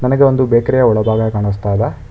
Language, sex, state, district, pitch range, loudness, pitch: Kannada, male, Karnataka, Bangalore, 105-130 Hz, -14 LUFS, 115 Hz